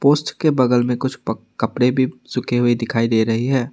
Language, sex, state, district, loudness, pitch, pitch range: Hindi, male, Assam, Sonitpur, -19 LUFS, 125 Hz, 120-130 Hz